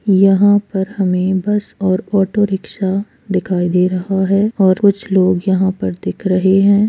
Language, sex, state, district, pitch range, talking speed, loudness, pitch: Hindi, female, Chhattisgarh, Kabirdham, 185-200 Hz, 165 wpm, -15 LUFS, 195 Hz